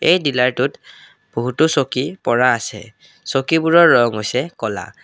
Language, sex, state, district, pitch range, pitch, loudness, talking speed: Assamese, male, Assam, Kamrup Metropolitan, 115-155 Hz, 125 Hz, -17 LUFS, 120 wpm